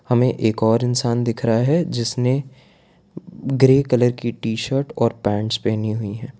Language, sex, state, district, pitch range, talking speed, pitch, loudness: Hindi, male, Gujarat, Valsad, 115-130 Hz, 170 wpm, 120 Hz, -20 LUFS